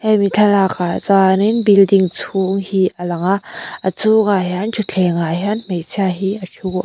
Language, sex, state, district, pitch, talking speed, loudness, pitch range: Mizo, female, Mizoram, Aizawl, 195 Hz, 175 wpm, -16 LUFS, 185-205 Hz